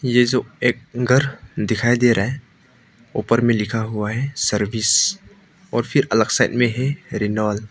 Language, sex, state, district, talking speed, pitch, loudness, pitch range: Hindi, male, Arunachal Pradesh, Papum Pare, 170 wpm, 120 Hz, -19 LUFS, 105-130 Hz